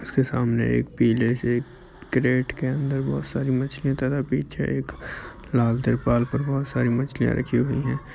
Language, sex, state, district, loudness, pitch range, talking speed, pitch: Hindi, male, Uttar Pradesh, Muzaffarnagar, -24 LUFS, 120-135 Hz, 175 wpm, 130 Hz